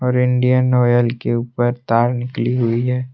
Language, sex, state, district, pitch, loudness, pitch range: Hindi, male, Jharkhand, Deoghar, 120 Hz, -17 LUFS, 120-125 Hz